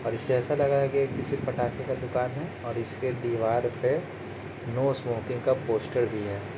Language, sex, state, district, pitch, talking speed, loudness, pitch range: Hindi, male, Uttar Pradesh, Etah, 125 Hz, 220 wpm, -28 LUFS, 120-130 Hz